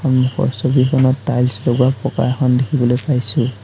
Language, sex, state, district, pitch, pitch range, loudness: Assamese, male, Assam, Sonitpur, 130 Hz, 125-135 Hz, -16 LUFS